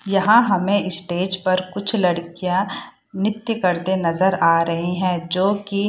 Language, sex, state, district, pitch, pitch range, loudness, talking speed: Hindi, female, Bihar, Purnia, 185 Hz, 180-200 Hz, -19 LUFS, 155 wpm